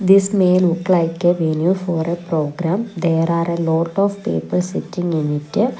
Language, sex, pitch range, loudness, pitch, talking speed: English, female, 160-180 Hz, -18 LUFS, 170 Hz, 185 wpm